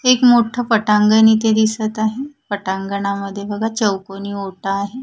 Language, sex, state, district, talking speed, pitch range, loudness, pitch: Marathi, female, Maharashtra, Washim, 130 wpm, 200-225 Hz, -17 LUFS, 215 Hz